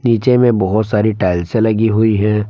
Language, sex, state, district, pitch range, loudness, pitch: Hindi, male, Jharkhand, Palamu, 105-110 Hz, -14 LUFS, 110 Hz